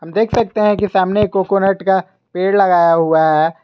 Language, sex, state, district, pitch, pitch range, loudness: Hindi, male, Jharkhand, Garhwa, 190 Hz, 170-205 Hz, -14 LUFS